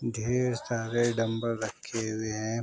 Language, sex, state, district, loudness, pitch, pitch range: Hindi, male, Uttar Pradesh, Varanasi, -30 LUFS, 115 Hz, 110-120 Hz